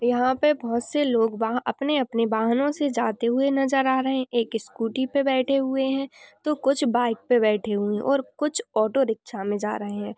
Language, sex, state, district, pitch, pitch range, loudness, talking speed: Hindi, female, Bihar, Bhagalpur, 250 Hz, 225-275 Hz, -24 LUFS, 210 wpm